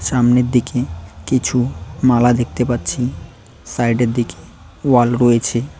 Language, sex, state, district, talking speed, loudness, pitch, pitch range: Bengali, male, West Bengal, Cooch Behar, 115 wpm, -17 LUFS, 120 Hz, 95-125 Hz